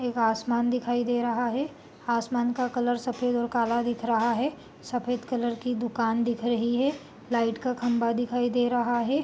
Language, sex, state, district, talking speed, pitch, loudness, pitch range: Hindi, female, Bihar, Gopalganj, 195 wpm, 240 Hz, -27 LUFS, 235-245 Hz